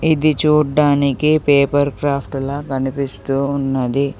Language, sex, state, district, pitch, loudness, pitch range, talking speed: Telugu, male, Telangana, Hyderabad, 140 Hz, -17 LUFS, 135-150 Hz, 100 wpm